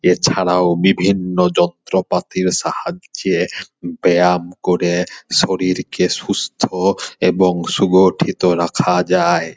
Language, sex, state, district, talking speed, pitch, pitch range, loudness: Bengali, male, West Bengal, Purulia, 80 wpm, 90 Hz, 90-95 Hz, -16 LUFS